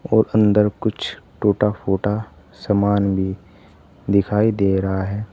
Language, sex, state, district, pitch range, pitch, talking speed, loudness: Hindi, male, Uttar Pradesh, Saharanpur, 95-105 Hz, 100 Hz, 125 wpm, -19 LUFS